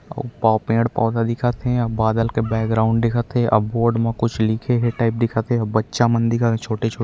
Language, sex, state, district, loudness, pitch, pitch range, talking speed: Chhattisgarhi, male, Chhattisgarh, Raigarh, -20 LUFS, 115 Hz, 110-120 Hz, 180 wpm